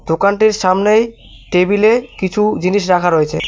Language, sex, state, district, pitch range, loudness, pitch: Bengali, male, West Bengal, Cooch Behar, 180-215 Hz, -14 LUFS, 200 Hz